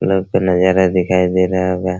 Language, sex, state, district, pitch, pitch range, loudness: Hindi, male, Bihar, Araria, 95 Hz, 90-95 Hz, -15 LUFS